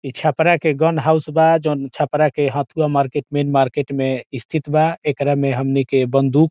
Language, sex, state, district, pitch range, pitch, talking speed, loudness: Bhojpuri, male, Bihar, Saran, 135-155 Hz, 145 Hz, 205 wpm, -18 LUFS